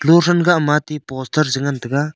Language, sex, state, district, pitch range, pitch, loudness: Wancho, male, Arunachal Pradesh, Longding, 140-160 Hz, 150 Hz, -17 LUFS